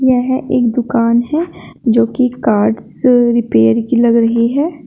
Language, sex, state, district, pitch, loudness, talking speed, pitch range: Hindi, female, Uttar Pradesh, Shamli, 240 Hz, -13 LUFS, 150 wpm, 230-255 Hz